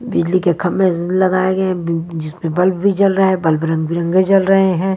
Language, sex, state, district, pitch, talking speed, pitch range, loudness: Hindi, female, Maharashtra, Washim, 185 Hz, 240 wpm, 170-190 Hz, -15 LUFS